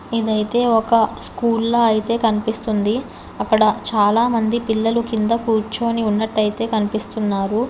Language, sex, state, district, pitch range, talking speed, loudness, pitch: Telugu, female, Telangana, Hyderabad, 215-230 Hz, 95 wpm, -19 LUFS, 225 Hz